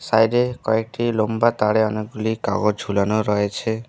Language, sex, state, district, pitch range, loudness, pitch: Bengali, male, West Bengal, Alipurduar, 105-115 Hz, -20 LUFS, 110 Hz